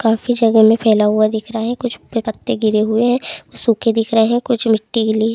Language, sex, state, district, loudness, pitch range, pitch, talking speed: Hindi, male, Bihar, Begusarai, -16 LUFS, 220-235 Hz, 225 Hz, 225 wpm